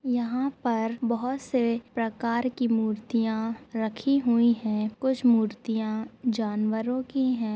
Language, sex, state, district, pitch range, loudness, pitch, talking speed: Hindi, female, Maharashtra, Nagpur, 220-245 Hz, -27 LUFS, 235 Hz, 120 wpm